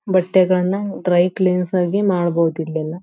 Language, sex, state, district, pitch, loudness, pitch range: Kannada, female, Karnataka, Belgaum, 180 Hz, -18 LUFS, 175-190 Hz